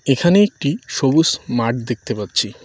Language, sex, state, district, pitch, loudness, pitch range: Bengali, male, West Bengal, Cooch Behar, 140 Hz, -18 LUFS, 120-175 Hz